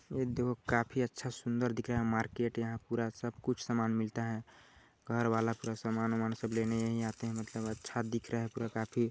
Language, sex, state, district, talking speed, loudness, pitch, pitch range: Hindi, male, Chhattisgarh, Balrampur, 210 wpm, -36 LUFS, 115 Hz, 115-120 Hz